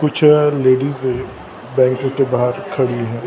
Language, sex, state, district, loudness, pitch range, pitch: Hindi, male, Maharashtra, Gondia, -16 LUFS, 125-145 Hz, 130 Hz